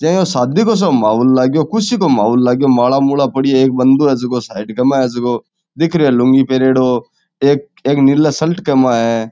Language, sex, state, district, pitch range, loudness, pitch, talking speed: Rajasthani, male, Rajasthan, Churu, 125-145 Hz, -13 LUFS, 135 Hz, 230 wpm